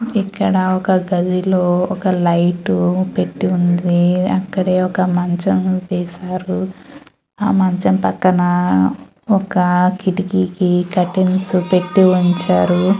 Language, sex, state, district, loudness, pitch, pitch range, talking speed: Telugu, female, Andhra Pradesh, Chittoor, -16 LUFS, 185 Hz, 175-190 Hz, 80 wpm